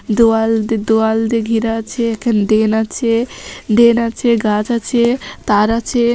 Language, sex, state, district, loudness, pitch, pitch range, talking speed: Bengali, female, West Bengal, North 24 Parganas, -15 LUFS, 225 Hz, 220-235 Hz, 155 wpm